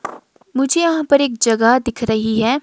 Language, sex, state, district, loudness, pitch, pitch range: Hindi, female, Himachal Pradesh, Shimla, -16 LUFS, 250 Hz, 230-285 Hz